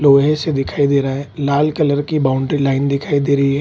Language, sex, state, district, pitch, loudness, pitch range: Hindi, male, Bihar, Kishanganj, 140 Hz, -16 LUFS, 140-145 Hz